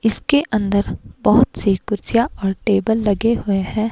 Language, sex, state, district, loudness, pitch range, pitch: Hindi, female, Himachal Pradesh, Shimla, -18 LUFS, 200-225 Hz, 210 Hz